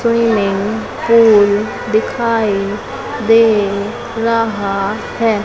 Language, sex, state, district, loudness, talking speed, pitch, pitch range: Hindi, female, Madhya Pradesh, Umaria, -14 LUFS, 65 wpm, 220 Hz, 205-230 Hz